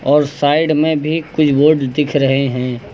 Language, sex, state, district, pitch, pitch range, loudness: Hindi, male, Uttar Pradesh, Lucknow, 145 Hz, 135-155 Hz, -15 LUFS